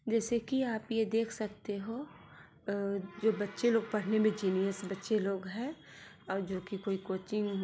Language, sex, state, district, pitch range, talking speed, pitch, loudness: Hindi, female, Bihar, Sitamarhi, 195-225 Hz, 170 wpm, 210 Hz, -34 LUFS